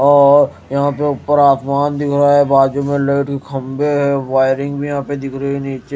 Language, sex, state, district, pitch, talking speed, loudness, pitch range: Hindi, male, Odisha, Malkangiri, 140 Hz, 210 wpm, -15 LUFS, 135-145 Hz